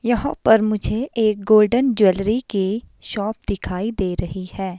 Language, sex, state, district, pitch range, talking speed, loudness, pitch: Hindi, female, Himachal Pradesh, Shimla, 195-230 Hz, 150 wpm, -20 LUFS, 215 Hz